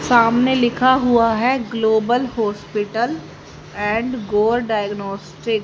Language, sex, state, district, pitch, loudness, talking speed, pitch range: Hindi, female, Haryana, Jhajjar, 230 Hz, -18 LUFS, 105 wpm, 210-245 Hz